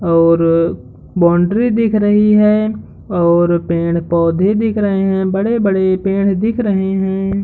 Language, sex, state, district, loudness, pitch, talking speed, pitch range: Hindi, male, Uttar Pradesh, Hamirpur, -14 LUFS, 195 Hz, 120 wpm, 170-210 Hz